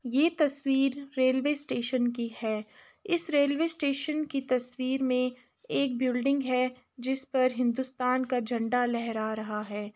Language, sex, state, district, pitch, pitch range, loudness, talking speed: Hindi, female, Uttar Pradesh, Jalaun, 255 Hz, 245-275 Hz, -29 LUFS, 140 wpm